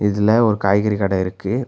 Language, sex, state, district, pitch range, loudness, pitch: Tamil, male, Tamil Nadu, Nilgiris, 100-110 Hz, -17 LUFS, 105 Hz